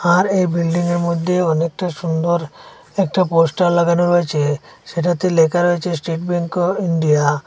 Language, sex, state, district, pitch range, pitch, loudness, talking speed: Bengali, male, Assam, Hailakandi, 165-175 Hz, 170 Hz, -17 LUFS, 145 wpm